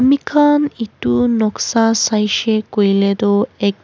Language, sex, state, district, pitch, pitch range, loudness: Nagamese, female, Nagaland, Kohima, 215 Hz, 205-240 Hz, -15 LUFS